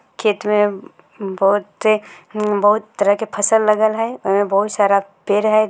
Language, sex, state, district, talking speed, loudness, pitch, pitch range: Maithili, female, Bihar, Samastipur, 145 wpm, -17 LUFS, 210 Hz, 200-215 Hz